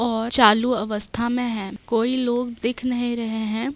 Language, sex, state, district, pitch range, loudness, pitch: Hindi, female, Bihar, Bhagalpur, 220-245 Hz, -22 LUFS, 235 Hz